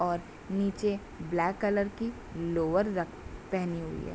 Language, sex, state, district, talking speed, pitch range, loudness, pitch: Hindi, female, Bihar, Bhagalpur, 145 wpm, 170-200 Hz, -32 LUFS, 180 Hz